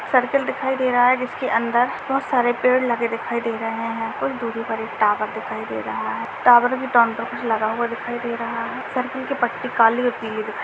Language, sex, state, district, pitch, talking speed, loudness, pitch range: Hindi, female, Bihar, Jahanabad, 235 Hz, 220 wpm, -21 LUFS, 230-250 Hz